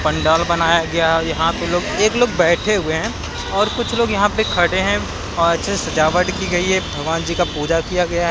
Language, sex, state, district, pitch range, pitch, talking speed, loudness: Hindi, male, Haryana, Jhajjar, 165-190 Hz, 170 Hz, 230 wpm, -17 LUFS